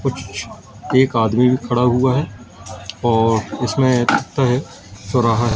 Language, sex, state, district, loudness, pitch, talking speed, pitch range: Hindi, male, Madhya Pradesh, Katni, -17 LUFS, 120 Hz, 140 wpm, 110-125 Hz